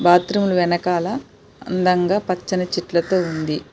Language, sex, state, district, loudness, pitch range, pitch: Telugu, female, Telangana, Hyderabad, -20 LUFS, 175-185 Hz, 180 Hz